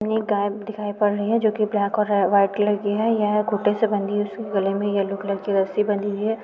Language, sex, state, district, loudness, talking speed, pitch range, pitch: Hindi, female, Uttar Pradesh, Budaun, -22 LUFS, 280 wpm, 200-215 Hz, 205 Hz